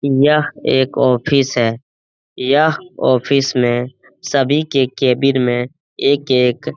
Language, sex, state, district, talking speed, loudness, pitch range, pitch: Hindi, male, Bihar, Jamui, 115 wpm, -15 LUFS, 125-140 Hz, 130 Hz